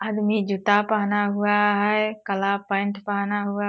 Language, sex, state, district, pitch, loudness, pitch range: Hindi, female, Bihar, Purnia, 205 Hz, -22 LUFS, 200-210 Hz